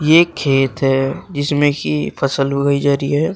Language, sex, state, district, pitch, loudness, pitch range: Hindi, male, Uttar Pradesh, Shamli, 140 Hz, -16 LUFS, 135-145 Hz